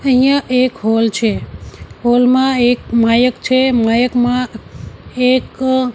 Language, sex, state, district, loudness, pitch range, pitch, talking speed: Gujarati, female, Gujarat, Gandhinagar, -14 LUFS, 235-255 Hz, 250 Hz, 120 wpm